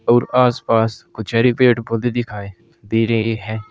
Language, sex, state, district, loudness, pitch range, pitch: Hindi, male, Uttar Pradesh, Saharanpur, -18 LUFS, 110-120 Hz, 115 Hz